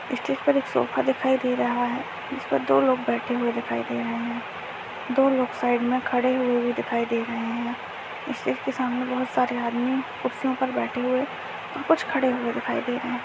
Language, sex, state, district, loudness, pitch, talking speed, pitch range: Hindi, female, Bihar, Purnia, -25 LUFS, 245 Hz, 220 wpm, 235-255 Hz